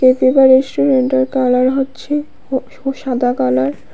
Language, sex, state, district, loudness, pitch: Bengali, female, Tripura, West Tripura, -15 LUFS, 255 Hz